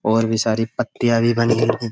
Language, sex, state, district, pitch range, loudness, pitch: Hindi, male, Uttar Pradesh, Budaun, 110-115 Hz, -19 LUFS, 115 Hz